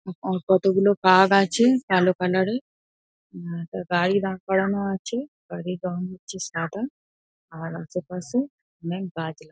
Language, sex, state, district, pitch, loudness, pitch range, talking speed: Bengali, female, West Bengal, North 24 Parganas, 185 Hz, -24 LUFS, 180-195 Hz, 130 wpm